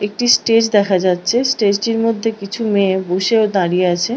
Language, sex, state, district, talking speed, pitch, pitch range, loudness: Bengali, female, West Bengal, Purulia, 170 wpm, 205 Hz, 190-230 Hz, -15 LUFS